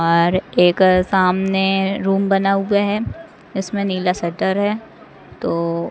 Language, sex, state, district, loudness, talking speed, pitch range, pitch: Hindi, female, Madhya Pradesh, Katni, -18 LUFS, 120 wpm, 180-195 Hz, 190 Hz